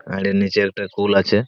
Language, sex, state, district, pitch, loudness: Bengali, male, West Bengal, Purulia, 100 Hz, -19 LUFS